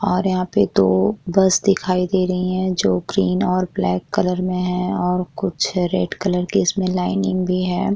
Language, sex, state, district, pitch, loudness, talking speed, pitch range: Hindi, female, Uttar Pradesh, Jyotiba Phule Nagar, 185 Hz, -19 LUFS, 190 wpm, 180-185 Hz